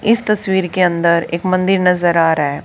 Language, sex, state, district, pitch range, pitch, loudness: Hindi, female, Haryana, Charkhi Dadri, 170-190 Hz, 180 Hz, -14 LUFS